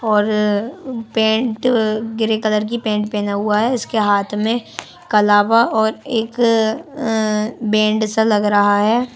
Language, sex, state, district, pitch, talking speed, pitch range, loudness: Hindi, female, Haryana, Charkhi Dadri, 220 Hz, 140 wpm, 210-230 Hz, -17 LUFS